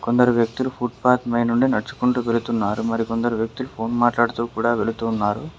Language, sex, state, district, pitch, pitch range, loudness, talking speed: Telugu, male, Telangana, Mahabubabad, 120 Hz, 115-125 Hz, -21 LUFS, 140 wpm